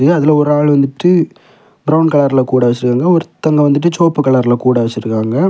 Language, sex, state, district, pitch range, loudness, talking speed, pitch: Tamil, male, Tamil Nadu, Kanyakumari, 125-160 Hz, -12 LUFS, 155 wpm, 145 Hz